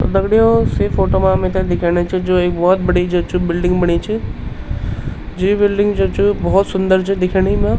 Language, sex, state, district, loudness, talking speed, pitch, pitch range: Garhwali, male, Uttarakhand, Tehri Garhwal, -16 LUFS, 210 wpm, 185 Hz, 180-195 Hz